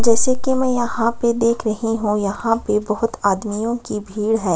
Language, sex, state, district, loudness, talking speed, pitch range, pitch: Hindi, female, Chhattisgarh, Sukma, -20 LUFS, 195 wpm, 210-235 Hz, 225 Hz